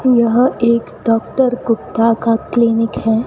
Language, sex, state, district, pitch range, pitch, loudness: Hindi, female, Rajasthan, Bikaner, 230-245 Hz, 230 Hz, -15 LUFS